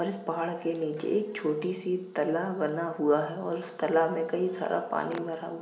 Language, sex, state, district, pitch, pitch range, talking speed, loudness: Hindi, male, Uttar Pradesh, Jalaun, 165 Hz, 160-175 Hz, 235 wpm, -30 LUFS